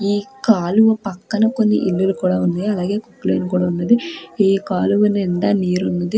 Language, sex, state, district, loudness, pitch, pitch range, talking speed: Telugu, female, Andhra Pradesh, Krishna, -18 LUFS, 200 Hz, 185-220 Hz, 155 wpm